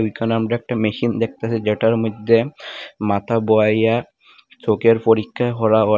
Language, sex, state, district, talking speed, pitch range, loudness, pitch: Bengali, male, Tripura, Unakoti, 130 wpm, 110-115 Hz, -18 LUFS, 115 Hz